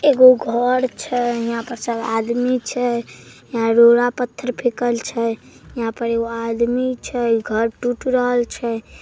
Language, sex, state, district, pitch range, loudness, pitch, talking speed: Maithili, female, Bihar, Samastipur, 230-250 Hz, -19 LUFS, 240 Hz, 145 wpm